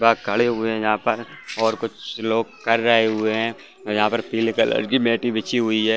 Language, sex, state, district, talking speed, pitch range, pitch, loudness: Hindi, male, Chhattisgarh, Bastar, 230 wpm, 110-115 Hz, 115 Hz, -21 LUFS